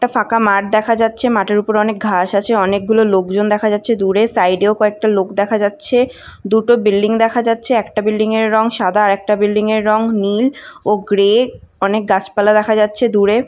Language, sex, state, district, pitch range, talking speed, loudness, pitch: Bengali, female, West Bengal, North 24 Parganas, 205-225 Hz, 195 wpm, -14 LUFS, 215 Hz